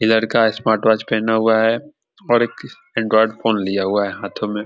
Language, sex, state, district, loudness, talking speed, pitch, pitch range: Hindi, male, Bihar, Saran, -18 LUFS, 205 wpm, 110 Hz, 110-115 Hz